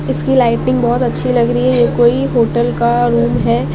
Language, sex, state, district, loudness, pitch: Hindi, female, Maharashtra, Mumbai Suburban, -13 LUFS, 120 Hz